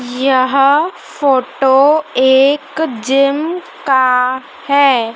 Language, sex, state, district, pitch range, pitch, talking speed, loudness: Hindi, male, Madhya Pradesh, Dhar, 260-285 Hz, 275 Hz, 70 wpm, -13 LUFS